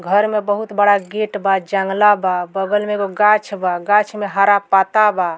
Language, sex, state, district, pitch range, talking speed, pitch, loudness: Bhojpuri, female, Bihar, Muzaffarpur, 195-210 Hz, 200 wpm, 205 Hz, -16 LUFS